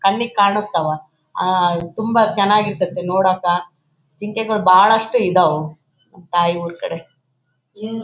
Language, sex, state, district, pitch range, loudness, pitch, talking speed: Kannada, male, Karnataka, Bellary, 155-210 Hz, -17 LUFS, 180 Hz, 110 wpm